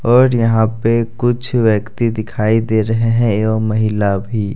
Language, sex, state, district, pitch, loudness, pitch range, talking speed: Hindi, male, Jharkhand, Deoghar, 110 Hz, -15 LUFS, 110-115 Hz, 160 wpm